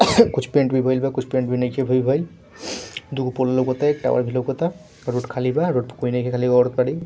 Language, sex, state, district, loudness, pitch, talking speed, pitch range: Bhojpuri, male, Bihar, Gopalganj, -21 LUFS, 130 Hz, 270 wpm, 125-140 Hz